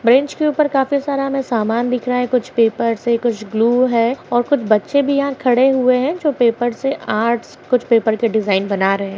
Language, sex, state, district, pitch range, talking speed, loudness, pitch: Hindi, female, Uttar Pradesh, Jyotiba Phule Nagar, 230-270 Hz, 230 wpm, -17 LUFS, 245 Hz